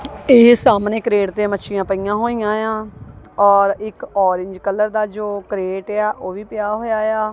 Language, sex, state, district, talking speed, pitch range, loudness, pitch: Punjabi, female, Punjab, Kapurthala, 170 wpm, 200-215 Hz, -17 LUFS, 210 Hz